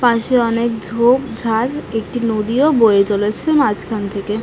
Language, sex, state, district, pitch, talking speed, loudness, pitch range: Bengali, female, West Bengal, North 24 Parganas, 230 Hz, 120 wpm, -16 LUFS, 215-245 Hz